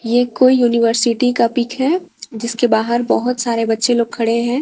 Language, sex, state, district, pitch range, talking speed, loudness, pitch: Hindi, female, Jharkhand, Garhwa, 230-250 Hz, 180 wpm, -16 LUFS, 240 Hz